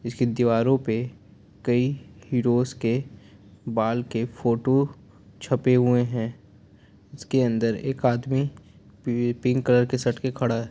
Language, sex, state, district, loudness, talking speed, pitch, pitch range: Hindi, male, Chhattisgarh, Korba, -24 LUFS, 130 wpm, 120 Hz, 110-130 Hz